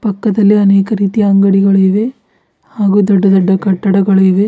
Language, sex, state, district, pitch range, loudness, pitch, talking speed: Kannada, female, Karnataka, Bidar, 195-210 Hz, -11 LUFS, 195 Hz, 135 wpm